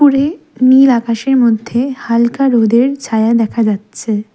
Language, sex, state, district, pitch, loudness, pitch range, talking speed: Bengali, female, West Bengal, Darjeeling, 235 Hz, -12 LUFS, 225-270 Hz, 125 wpm